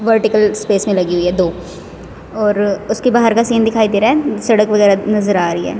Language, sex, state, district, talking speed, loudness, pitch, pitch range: Hindi, female, Haryana, Rohtak, 225 wpm, -14 LUFS, 210 Hz, 190-220 Hz